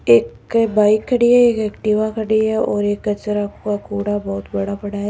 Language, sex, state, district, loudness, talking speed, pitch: Hindi, female, Rajasthan, Jaipur, -18 LUFS, 200 wpm, 210 Hz